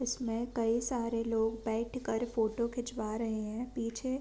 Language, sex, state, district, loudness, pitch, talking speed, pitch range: Hindi, female, Uttar Pradesh, Deoria, -34 LUFS, 230 Hz, 170 wpm, 225-240 Hz